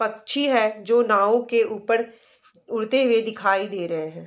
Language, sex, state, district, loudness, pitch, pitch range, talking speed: Hindi, female, Bihar, Darbhanga, -22 LUFS, 225 Hz, 205-235 Hz, 170 wpm